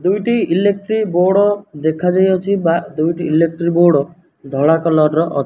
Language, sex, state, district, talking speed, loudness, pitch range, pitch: Odia, male, Odisha, Nuapada, 155 wpm, -15 LUFS, 160-195 Hz, 170 Hz